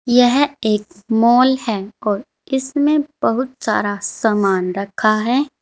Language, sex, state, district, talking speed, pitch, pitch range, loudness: Hindi, female, Uttar Pradesh, Shamli, 115 wpm, 230 Hz, 210-265 Hz, -17 LUFS